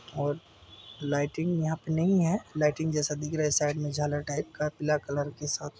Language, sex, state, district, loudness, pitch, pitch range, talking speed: Hindi, male, Chhattisgarh, Bilaspur, -29 LUFS, 150 Hz, 145-160 Hz, 205 wpm